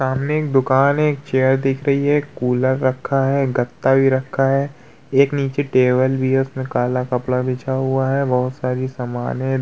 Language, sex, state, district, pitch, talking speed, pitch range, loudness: Hindi, male, Uttar Pradesh, Budaun, 130 Hz, 195 wpm, 130-135 Hz, -18 LUFS